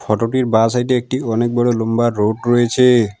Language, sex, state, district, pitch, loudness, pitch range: Bengali, male, West Bengal, Alipurduar, 120 Hz, -16 LUFS, 115-125 Hz